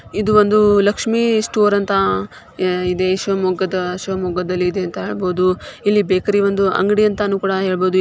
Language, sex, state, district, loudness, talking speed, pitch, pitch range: Kannada, female, Karnataka, Shimoga, -17 LUFS, 95 wpm, 190 Hz, 185-205 Hz